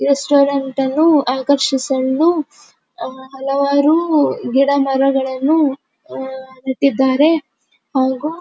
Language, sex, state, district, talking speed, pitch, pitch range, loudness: Kannada, female, Karnataka, Dharwad, 65 wpm, 275 Hz, 265-295 Hz, -16 LUFS